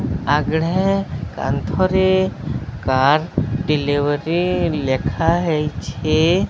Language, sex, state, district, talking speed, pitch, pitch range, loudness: Odia, male, Odisha, Sambalpur, 45 wpm, 155 Hz, 145-175 Hz, -19 LUFS